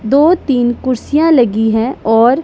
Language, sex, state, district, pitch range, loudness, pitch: Hindi, female, Punjab, Pathankot, 230-285 Hz, -12 LUFS, 250 Hz